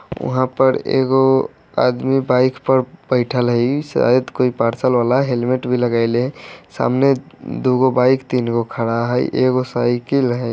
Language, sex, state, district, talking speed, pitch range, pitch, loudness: Bajjika, male, Bihar, Vaishali, 140 wpm, 120-130 Hz, 125 Hz, -17 LUFS